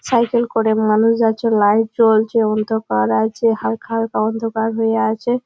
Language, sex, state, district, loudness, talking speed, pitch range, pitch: Bengali, female, West Bengal, Malda, -17 LUFS, 145 wpm, 220-230 Hz, 225 Hz